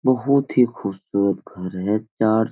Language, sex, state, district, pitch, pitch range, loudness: Hindi, male, Bihar, Jahanabad, 110 Hz, 100-125 Hz, -21 LUFS